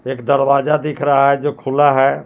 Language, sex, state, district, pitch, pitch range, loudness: Hindi, male, Jharkhand, Palamu, 140 Hz, 135-145 Hz, -15 LUFS